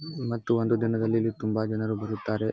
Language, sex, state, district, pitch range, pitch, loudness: Kannada, male, Karnataka, Bijapur, 110-115 Hz, 110 Hz, -28 LUFS